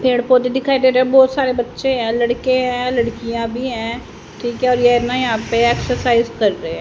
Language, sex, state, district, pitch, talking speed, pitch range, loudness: Hindi, female, Haryana, Jhajjar, 245 Hz, 185 wpm, 235-255 Hz, -16 LUFS